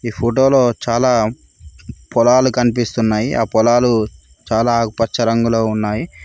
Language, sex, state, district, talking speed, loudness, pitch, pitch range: Telugu, male, Telangana, Mahabubabad, 105 wpm, -16 LUFS, 115 Hz, 110-120 Hz